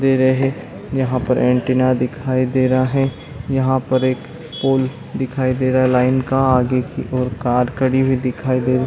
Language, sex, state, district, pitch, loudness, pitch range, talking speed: Hindi, male, Chhattisgarh, Bilaspur, 130 Hz, -18 LUFS, 125-130 Hz, 180 wpm